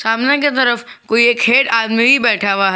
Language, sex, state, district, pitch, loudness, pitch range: Hindi, male, Jharkhand, Garhwa, 235 Hz, -13 LUFS, 225-245 Hz